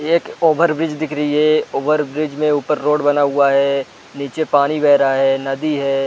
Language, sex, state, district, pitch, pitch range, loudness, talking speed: Hindi, male, Chhattisgarh, Rajnandgaon, 145 Hz, 140-155 Hz, -16 LUFS, 205 wpm